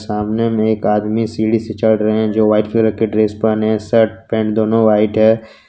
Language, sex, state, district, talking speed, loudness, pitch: Hindi, male, Jharkhand, Ranchi, 220 wpm, -15 LUFS, 110 Hz